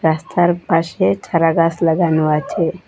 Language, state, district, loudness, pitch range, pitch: Bengali, Assam, Hailakandi, -16 LUFS, 160-170 Hz, 165 Hz